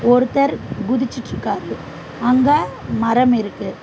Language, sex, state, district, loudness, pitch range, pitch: Tamil, female, Tamil Nadu, Chennai, -18 LUFS, 235-260 Hz, 250 Hz